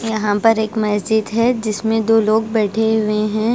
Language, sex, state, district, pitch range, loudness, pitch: Hindi, female, Bihar, Patna, 215-225 Hz, -17 LUFS, 220 Hz